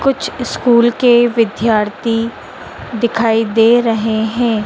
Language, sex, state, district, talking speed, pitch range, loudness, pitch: Hindi, female, Madhya Pradesh, Dhar, 105 wpm, 225-240 Hz, -14 LUFS, 230 Hz